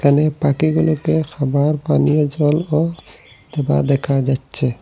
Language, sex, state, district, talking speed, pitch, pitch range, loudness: Bengali, male, Assam, Hailakandi, 100 wpm, 145 Hz, 135-155 Hz, -17 LUFS